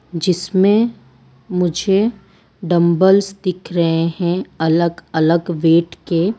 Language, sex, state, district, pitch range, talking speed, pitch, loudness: Hindi, female, Gujarat, Valsad, 170-190 Hz, 95 wpm, 175 Hz, -16 LUFS